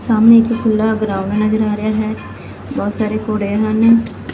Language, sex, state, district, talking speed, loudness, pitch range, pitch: Punjabi, female, Punjab, Fazilka, 165 wpm, -15 LUFS, 215-220 Hz, 215 Hz